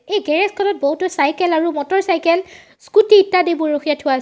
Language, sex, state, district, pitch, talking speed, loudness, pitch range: Assamese, female, Assam, Sonitpur, 350 Hz, 170 wpm, -16 LUFS, 300-385 Hz